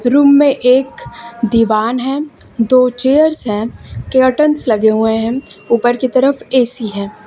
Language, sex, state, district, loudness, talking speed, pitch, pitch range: Hindi, female, Uttar Pradesh, Lucknow, -13 LUFS, 140 wpm, 250 Hz, 225-270 Hz